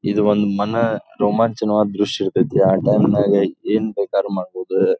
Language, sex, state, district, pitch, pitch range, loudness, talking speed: Kannada, male, Karnataka, Dharwad, 105 Hz, 100-110 Hz, -18 LUFS, 145 wpm